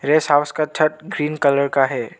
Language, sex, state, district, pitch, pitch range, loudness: Hindi, male, Arunachal Pradesh, Lower Dibang Valley, 150 Hz, 140-155 Hz, -19 LUFS